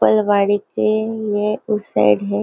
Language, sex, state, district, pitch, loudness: Hindi, female, Maharashtra, Nagpur, 205 Hz, -18 LUFS